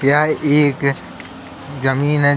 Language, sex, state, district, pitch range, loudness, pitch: Hindi, male, Uttar Pradesh, Jalaun, 140-145 Hz, -16 LUFS, 145 Hz